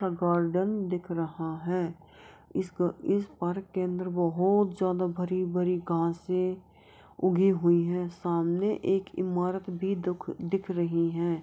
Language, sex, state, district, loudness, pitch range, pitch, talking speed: Hindi, female, Uttar Pradesh, Jyotiba Phule Nagar, -29 LUFS, 170-185 Hz, 180 Hz, 130 wpm